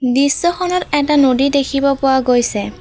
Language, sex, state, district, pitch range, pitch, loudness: Assamese, female, Assam, Kamrup Metropolitan, 260-295 Hz, 275 Hz, -15 LUFS